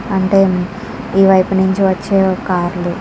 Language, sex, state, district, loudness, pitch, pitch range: Telugu, female, Andhra Pradesh, Krishna, -14 LUFS, 190 Hz, 185-195 Hz